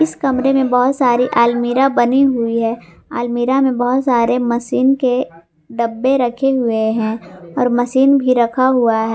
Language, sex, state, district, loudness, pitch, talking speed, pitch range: Hindi, female, Jharkhand, Garhwa, -15 LUFS, 245 Hz, 165 wpm, 235-265 Hz